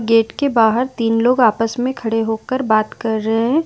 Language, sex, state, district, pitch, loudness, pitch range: Hindi, female, Jharkhand, Ranchi, 225 Hz, -17 LUFS, 225-250 Hz